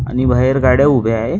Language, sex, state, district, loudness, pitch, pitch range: Marathi, male, Maharashtra, Chandrapur, -13 LUFS, 130 Hz, 125-130 Hz